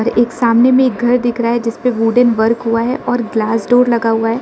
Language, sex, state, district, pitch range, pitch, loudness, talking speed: Hindi, female, Arunachal Pradesh, Lower Dibang Valley, 225-245 Hz, 235 Hz, -14 LUFS, 270 wpm